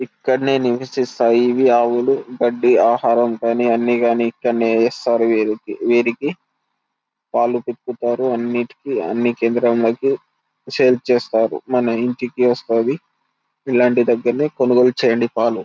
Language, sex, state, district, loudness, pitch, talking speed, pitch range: Telugu, male, Telangana, Karimnagar, -17 LUFS, 120 Hz, 105 wpm, 115-125 Hz